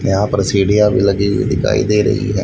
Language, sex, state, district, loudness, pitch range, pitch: Hindi, male, Haryana, Rohtak, -14 LUFS, 100-105 Hz, 100 Hz